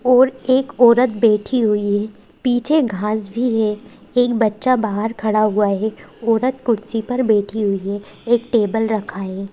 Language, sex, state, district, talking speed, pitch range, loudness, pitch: Hindi, female, Madhya Pradesh, Bhopal, 165 wpm, 210-245 Hz, -18 LUFS, 220 Hz